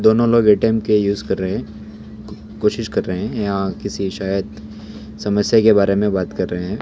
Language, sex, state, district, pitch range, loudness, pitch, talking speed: Hindi, male, Karnataka, Bangalore, 95-110 Hz, -18 LUFS, 105 Hz, 195 wpm